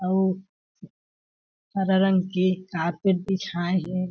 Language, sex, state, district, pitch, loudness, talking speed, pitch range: Chhattisgarhi, female, Chhattisgarh, Jashpur, 185 Hz, -25 LUFS, 100 wpm, 180-190 Hz